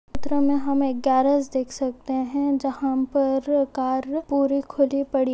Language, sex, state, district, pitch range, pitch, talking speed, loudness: Hindi, female, Bihar, Purnia, 265-280 Hz, 275 Hz, 170 wpm, -23 LUFS